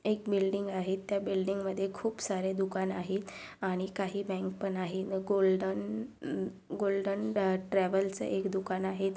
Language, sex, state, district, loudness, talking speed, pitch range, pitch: Marathi, female, Maharashtra, Sindhudurg, -33 LUFS, 155 wpm, 190-200 Hz, 195 Hz